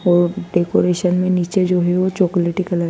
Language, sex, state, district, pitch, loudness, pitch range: Hindi, female, Madhya Pradesh, Dhar, 180 Hz, -17 LUFS, 175-185 Hz